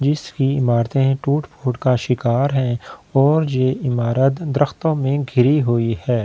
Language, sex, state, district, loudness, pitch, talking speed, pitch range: Hindi, male, Delhi, New Delhi, -18 LUFS, 135 Hz, 155 wpm, 125-145 Hz